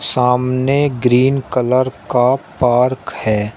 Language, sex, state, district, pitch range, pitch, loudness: Hindi, male, Uttar Pradesh, Shamli, 125-135 Hz, 125 Hz, -15 LUFS